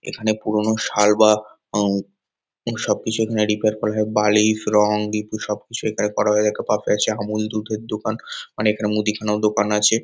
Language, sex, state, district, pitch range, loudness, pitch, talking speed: Bengali, male, West Bengal, Kolkata, 105-110 Hz, -20 LUFS, 105 Hz, 175 wpm